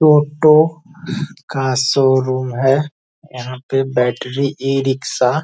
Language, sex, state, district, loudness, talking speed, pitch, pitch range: Hindi, male, Bihar, Purnia, -16 LUFS, 100 wpm, 135 Hz, 130-150 Hz